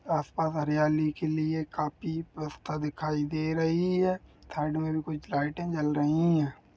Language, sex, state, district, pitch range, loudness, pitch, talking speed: Hindi, male, Chhattisgarh, Rajnandgaon, 150-160 Hz, -30 LUFS, 155 Hz, 160 wpm